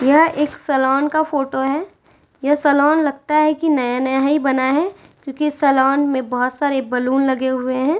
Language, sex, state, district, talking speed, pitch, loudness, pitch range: Hindi, female, Uttar Pradesh, Etah, 180 wpm, 280 Hz, -17 LUFS, 265-300 Hz